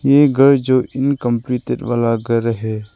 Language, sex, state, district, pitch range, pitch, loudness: Hindi, male, Arunachal Pradesh, Lower Dibang Valley, 115-135 Hz, 125 Hz, -16 LUFS